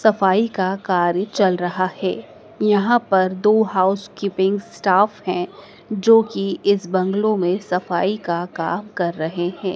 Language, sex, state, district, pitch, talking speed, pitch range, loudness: Hindi, female, Madhya Pradesh, Dhar, 190 Hz, 140 wpm, 180-205 Hz, -19 LUFS